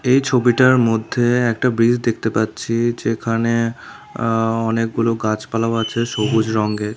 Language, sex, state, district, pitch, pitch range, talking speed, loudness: Bengali, male, Tripura, South Tripura, 115 Hz, 110-120 Hz, 120 wpm, -18 LUFS